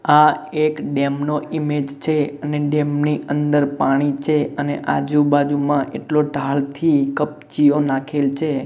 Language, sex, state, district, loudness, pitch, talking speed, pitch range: Gujarati, male, Gujarat, Gandhinagar, -19 LUFS, 145 Hz, 140 wpm, 140-150 Hz